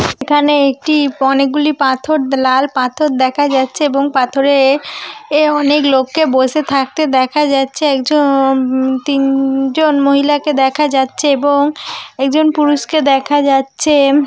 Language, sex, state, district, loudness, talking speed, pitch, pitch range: Bengali, female, West Bengal, Purulia, -13 LUFS, 120 wpm, 280 Hz, 270-295 Hz